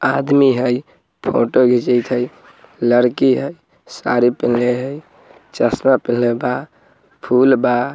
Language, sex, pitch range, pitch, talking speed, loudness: Bhojpuri, male, 120-130 Hz, 125 Hz, 115 wpm, -16 LUFS